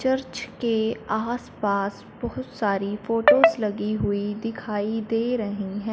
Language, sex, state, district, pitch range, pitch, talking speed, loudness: Hindi, female, Punjab, Fazilka, 205-230 Hz, 220 Hz, 120 wpm, -25 LUFS